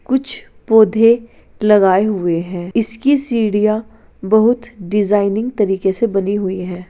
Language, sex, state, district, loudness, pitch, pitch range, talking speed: Hindi, female, Uttar Pradesh, Jalaun, -15 LUFS, 210 Hz, 195-230 Hz, 120 wpm